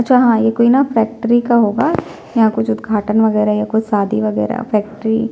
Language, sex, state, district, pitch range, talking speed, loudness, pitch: Hindi, female, Chhattisgarh, Sukma, 210-235 Hz, 190 wpm, -15 LUFS, 220 Hz